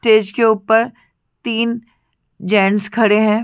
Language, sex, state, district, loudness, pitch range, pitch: Hindi, female, Chhattisgarh, Rajnandgaon, -16 LUFS, 210-230 Hz, 220 Hz